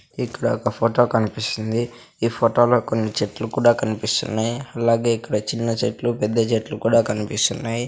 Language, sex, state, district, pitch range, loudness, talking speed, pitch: Telugu, male, Andhra Pradesh, Sri Satya Sai, 110-120 Hz, -21 LUFS, 145 wpm, 115 Hz